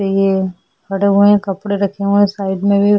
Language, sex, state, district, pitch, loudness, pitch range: Hindi, female, Goa, North and South Goa, 200 Hz, -15 LUFS, 195-200 Hz